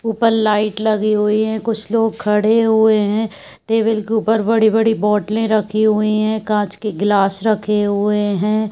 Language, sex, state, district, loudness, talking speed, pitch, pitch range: Hindi, female, Uttar Pradesh, Varanasi, -16 LUFS, 165 wpm, 215 Hz, 210-220 Hz